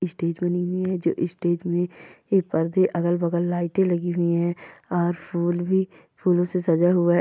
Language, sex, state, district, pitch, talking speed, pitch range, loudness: Hindi, female, Goa, North and South Goa, 175 Hz, 190 wpm, 170-180 Hz, -23 LUFS